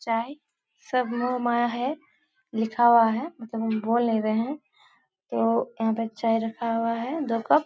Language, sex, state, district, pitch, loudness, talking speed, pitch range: Hindi, female, Bihar, Supaul, 235 Hz, -25 LUFS, 190 wpm, 225-255 Hz